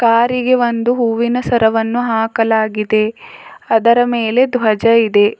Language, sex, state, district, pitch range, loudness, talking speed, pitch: Kannada, female, Karnataka, Bidar, 225-245 Hz, -14 LUFS, 100 wpm, 230 Hz